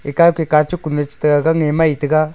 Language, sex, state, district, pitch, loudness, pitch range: Wancho, male, Arunachal Pradesh, Longding, 155 Hz, -15 LUFS, 150-160 Hz